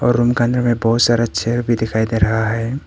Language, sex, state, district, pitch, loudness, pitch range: Hindi, male, Arunachal Pradesh, Papum Pare, 115 Hz, -17 LUFS, 110-120 Hz